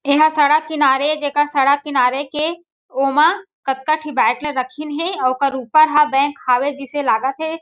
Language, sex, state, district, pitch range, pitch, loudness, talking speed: Chhattisgarhi, female, Chhattisgarh, Jashpur, 275-310 Hz, 290 Hz, -17 LUFS, 165 wpm